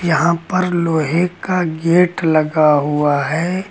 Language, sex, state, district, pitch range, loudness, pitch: Hindi, male, Uttar Pradesh, Lucknow, 155-180 Hz, -16 LUFS, 165 Hz